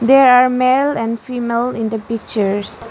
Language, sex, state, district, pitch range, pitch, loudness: English, female, Arunachal Pradesh, Lower Dibang Valley, 225-255 Hz, 235 Hz, -15 LUFS